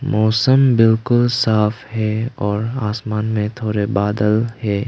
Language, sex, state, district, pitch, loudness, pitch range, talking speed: Hindi, male, Arunachal Pradesh, Lower Dibang Valley, 110 Hz, -17 LUFS, 105-120 Hz, 125 wpm